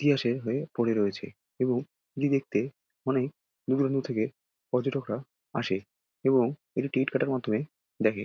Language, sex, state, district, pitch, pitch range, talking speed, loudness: Bengali, male, West Bengal, Dakshin Dinajpur, 130 Hz, 115-135 Hz, 130 wpm, -30 LUFS